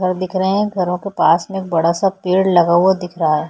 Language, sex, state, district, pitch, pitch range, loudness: Hindi, female, Chhattisgarh, Korba, 185 Hz, 175-190 Hz, -16 LUFS